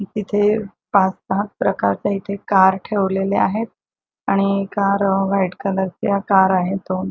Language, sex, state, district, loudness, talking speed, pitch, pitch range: Marathi, female, Maharashtra, Chandrapur, -19 LUFS, 125 wpm, 195 Hz, 190-200 Hz